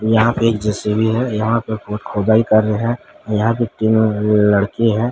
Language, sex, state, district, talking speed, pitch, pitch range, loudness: Hindi, male, Odisha, Sambalpur, 200 wpm, 110 Hz, 105-115 Hz, -17 LUFS